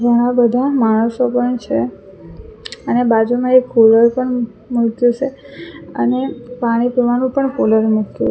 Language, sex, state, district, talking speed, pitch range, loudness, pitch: Gujarati, female, Gujarat, Valsad, 130 wpm, 230-250 Hz, -15 LUFS, 245 Hz